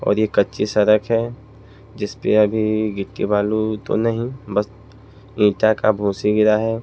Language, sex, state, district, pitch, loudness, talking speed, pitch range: Hindi, male, Haryana, Jhajjar, 105 Hz, -19 LUFS, 160 wpm, 105-110 Hz